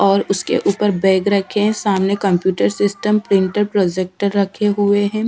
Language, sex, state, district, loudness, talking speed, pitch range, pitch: Hindi, female, Punjab, Fazilka, -17 LUFS, 160 wpm, 190-205 Hz, 200 Hz